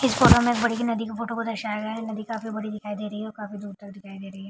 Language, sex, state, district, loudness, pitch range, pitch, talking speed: Hindi, female, Chhattisgarh, Bilaspur, -25 LUFS, 205-230 Hz, 220 Hz, 345 wpm